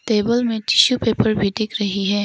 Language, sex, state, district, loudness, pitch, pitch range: Hindi, female, Arunachal Pradesh, Papum Pare, -18 LUFS, 215 Hz, 205-225 Hz